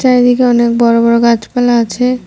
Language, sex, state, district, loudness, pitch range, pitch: Bengali, female, West Bengal, Cooch Behar, -10 LUFS, 235-250 Hz, 240 Hz